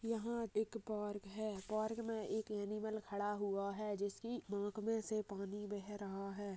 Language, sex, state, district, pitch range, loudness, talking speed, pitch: Hindi, female, Uttar Pradesh, Jyotiba Phule Nagar, 200-220 Hz, -43 LUFS, 175 wpm, 210 Hz